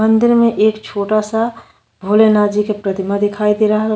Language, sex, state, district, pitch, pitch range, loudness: Bhojpuri, female, Uttar Pradesh, Ghazipur, 215 Hz, 205-220 Hz, -15 LUFS